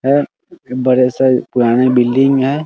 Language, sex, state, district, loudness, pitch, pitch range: Hindi, male, Bihar, Muzaffarpur, -13 LUFS, 130 Hz, 125-135 Hz